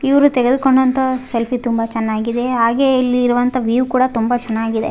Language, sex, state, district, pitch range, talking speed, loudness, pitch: Kannada, female, Karnataka, Raichur, 230-255 Hz, 145 wpm, -16 LUFS, 245 Hz